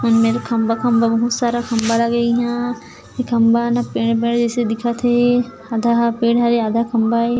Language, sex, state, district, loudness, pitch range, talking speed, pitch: Chhattisgarhi, female, Chhattisgarh, Jashpur, -17 LUFS, 230-240 Hz, 195 wpm, 235 Hz